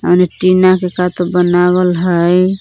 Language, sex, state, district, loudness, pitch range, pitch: Magahi, female, Jharkhand, Palamu, -12 LUFS, 180-185 Hz, 180 Hz